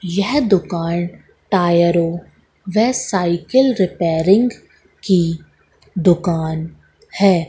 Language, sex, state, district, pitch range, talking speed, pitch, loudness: Hindi, female, Madhya Pradesh, Katni, 170-200 Hz, 70 wpm, 180 Hz, -17 LUFS